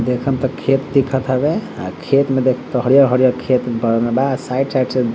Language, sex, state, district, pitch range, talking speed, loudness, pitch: Bhojpuri, male, Bihar, Saran, 125-135 Hz, 210 wpm, -16 LUFS, 130 Hz